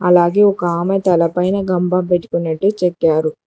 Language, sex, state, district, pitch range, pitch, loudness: Telugu, female, Telangana, Hyderabad, 170-185 Hz, 180 Hz, -16 LUFS